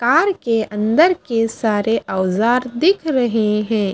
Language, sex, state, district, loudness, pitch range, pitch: Hindi, female, Bihar, Kaimur, -17 LUFS, 215-270 Hz, 230 Hz